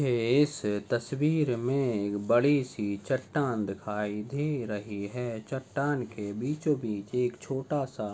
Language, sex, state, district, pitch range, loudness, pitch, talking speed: Hindi, male, Maharashtra, Chandrapur, 105-140 Hz, -30 LUFS, 120 Hz, 120 wpm